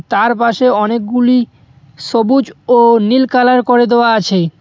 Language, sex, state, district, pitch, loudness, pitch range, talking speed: Bengali, male, West Bengal, Cooch Behar, 235 Hz, -11 LUFS, 210-250 Hz, 130 wpm